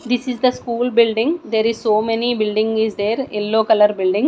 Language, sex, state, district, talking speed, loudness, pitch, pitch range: English, female, Odisha, Nuapada, 210 wpm, -18 LUFS, 225 Hz, 215-245 Hz